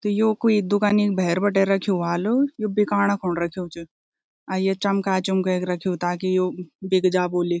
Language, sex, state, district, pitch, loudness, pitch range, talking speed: Garhwali, female, Uttarakhand, Tehri Garhwal, 190 Hz, -22 LUFS, 180-205 Hz, 195 wpm